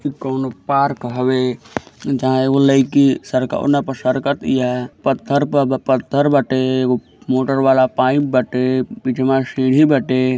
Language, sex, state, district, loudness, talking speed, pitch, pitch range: Bhojpuri, male, Uttar Pradesh, Gorakhpur, -17 LUFS, 120 wpm, 130 Hz, 130-140 Hz